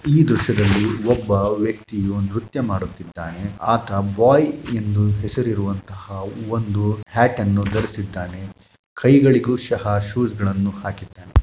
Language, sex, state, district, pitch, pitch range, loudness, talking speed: Kannada, male, Karnataka, Shimoga, 105 Hz, 100-115 Hz, -19 LUFS, 90 wpm